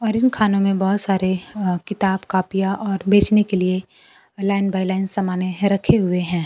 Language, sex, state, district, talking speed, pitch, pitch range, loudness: Hindi, female, Bihar, Kaimur, 195 wpm, 195 Hz, 185-200 Hz, -19 LUFS